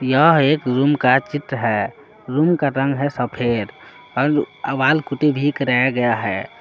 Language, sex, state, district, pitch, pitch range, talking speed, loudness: Hindi, male, Jharkhand, Palamu, 135 Hz, 125-145 Hz, 165 wpm, -18 LUFS